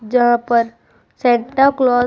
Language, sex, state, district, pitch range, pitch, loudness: Hindi, female, Uttar Pradesh, Budaun, 235-255 Hz, 245 Hz, -15 LUFS